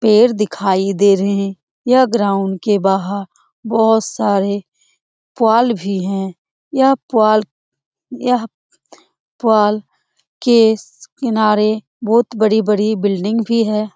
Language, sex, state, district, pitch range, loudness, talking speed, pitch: Hindi, female, Bihar, Lakhisarai, 195-230 Hz, -15 LUFS, 105 wpm, 215 Hz